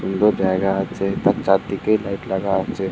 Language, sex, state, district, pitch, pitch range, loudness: Bengali, male, West Bengal, Purulia, 95 Hz, 95-100 Hz, -20 LUFS